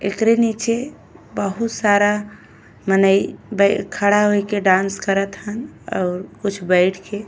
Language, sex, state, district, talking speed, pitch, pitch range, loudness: Bhojpuri, female, Uttar Pradesh, Deoria, 140 wpm, 200 Hz, 190-210 Hz, -18 LUFS